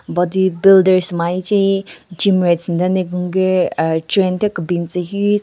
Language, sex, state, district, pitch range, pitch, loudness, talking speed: Rengma, female, Nagaland, Kohima, 175-195 Hz, 185 Hz, -16 LUFS, 165 wpm